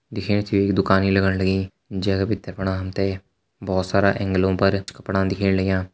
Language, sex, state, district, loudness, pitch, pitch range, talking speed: Hindi, male, Uttarakhand, Uttarkashi, -22 LUFS, 95 Hz, 95-100 Hz, 200 wpm